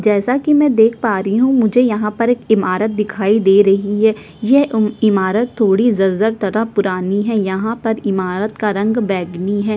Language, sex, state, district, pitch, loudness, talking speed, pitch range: Hindi, female, Chhattisgarh, Sukma, 215 Hz, -15 LUFS, 190 wpm, 200-225 Hz